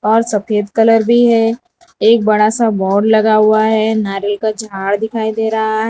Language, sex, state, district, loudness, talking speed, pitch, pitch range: Hindi, female, Gujarat, Valsad, -13 LUFS, 195 wpm, 220 Hz, 215-225 Hz